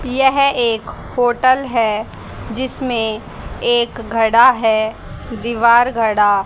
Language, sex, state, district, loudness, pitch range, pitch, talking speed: Hindi, female, Haryana, Rohtak, -16 LUFS, 220-250 Hz, 235 Hz, 95 wpm